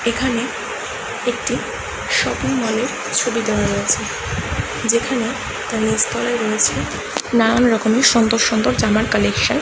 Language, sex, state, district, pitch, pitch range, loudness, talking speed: Bengali, female, West Bengal, Kolkata, 230 Hz, 220-240 Hz, -18 LUFS, 125 wpm